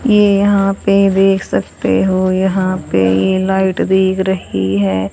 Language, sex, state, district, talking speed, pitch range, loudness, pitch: Hindi, female, Haryana, Jhajjar, 150 wpm, 175-195 Hz, -14 LUFS, 190 Hz